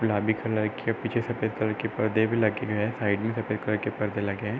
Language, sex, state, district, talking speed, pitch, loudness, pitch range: Hindi, male, Uttar Pradesh, Hamirpur, 260 wpm, 110 Hz, -27 LUFS, 105-115 Hz